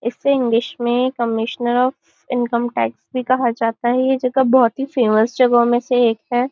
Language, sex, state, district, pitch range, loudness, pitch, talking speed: Hindi, female, Maharashtra, Nagpur, 235-255 Hz, -18 LUFS, 245 Hz, 195 wpm